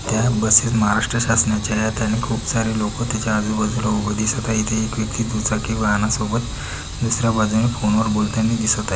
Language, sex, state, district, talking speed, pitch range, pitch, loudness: Marathi, male, Maharashtra, Pune, 165 wpm, 105-115 Hz, 110 Hz, -19 LUFS